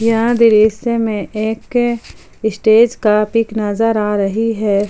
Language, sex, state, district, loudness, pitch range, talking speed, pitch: Hindi, female, Jharkhand, Palamu, -15 LUFS, 215-230 Hz, 135 wpm, 220 Hz